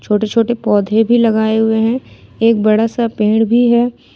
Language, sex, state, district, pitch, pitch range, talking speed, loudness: Hindi, female, Jharkhand, Ranchi, 225 Hz, 220-235 Hz, 185 wpm, -13 LUFS